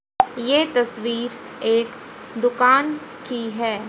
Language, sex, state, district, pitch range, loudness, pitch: Hindi, female, Haryana, Rohtak, 230-260 Hz, -21 LUFS, 245 Hz